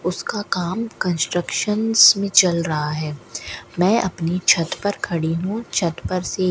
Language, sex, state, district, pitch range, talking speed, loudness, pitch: Hindi, female, Rajasthan, Bikaner, 170-200 Hz, 155 wpm, -19 LUFS, 180 Hz